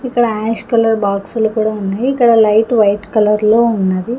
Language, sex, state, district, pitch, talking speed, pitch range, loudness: Telugu, female, Telangana, Hyderabad, 220 Hz, 155 wpm, 210-230 Hz, -13 LUFS